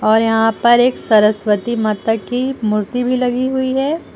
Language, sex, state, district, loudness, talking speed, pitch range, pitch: Hindi, female, Uttar Pradesh, Lucknow, -15 LUFS, 175 wpm, 215-255 Hz, 235 Hz